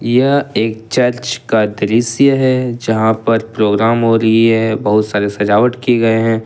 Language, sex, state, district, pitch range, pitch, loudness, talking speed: Hindi, male, Jharkhand, Ranchi, 110-120 Hz, 115 Hz, -13 LUFS, 165 wpm